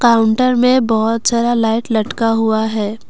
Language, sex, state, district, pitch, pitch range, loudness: Hindi, female, Assam, Kamrup Metropolitan, 225 Hz, 220-235 Hz, -15 LUFS